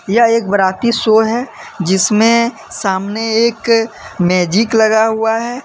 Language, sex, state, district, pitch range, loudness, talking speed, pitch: Hindi, male, Jharkhand, Deoghar, 205-230 Hz, -13 LUFS, 115 wpm, 225 Hz